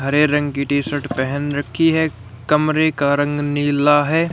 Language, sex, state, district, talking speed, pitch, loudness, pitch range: Hindi, male, Haryana, Rohtak, 180 wpm, 145 Hz, -18 LUFS, 140-150 Hz